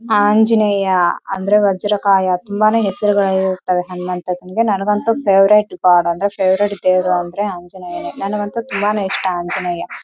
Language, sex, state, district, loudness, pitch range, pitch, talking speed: Kannada, female, Karnataka, Raichur, -16 LUFS, 185-210 Hz, 195 Hz, 115 wpm